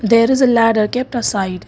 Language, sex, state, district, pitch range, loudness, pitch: English, female, Karnataka, Bangalore, 210-245 Hz, -15 LUFS, 230 Hz